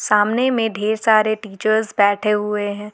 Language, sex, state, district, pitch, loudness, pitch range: Hindi, female, Jharkhand, Garhwa, 210 Hz, -18 LUFS, 210-220 Hz